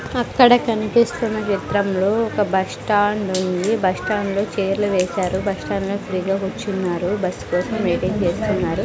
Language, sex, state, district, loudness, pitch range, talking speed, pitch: Telugu, female, Andhra Pradesh, Sri Satya Sai, -20 LUFS, 185-215 Hz, 120 wpm, 200 Hz